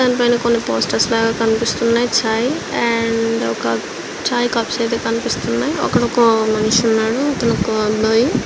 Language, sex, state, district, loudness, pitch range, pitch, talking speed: Telugu, female, Andhra Pradesh, Visakhapatnam, -17 LUFS, 225-240 Hz, 230 Hz, 135 wpm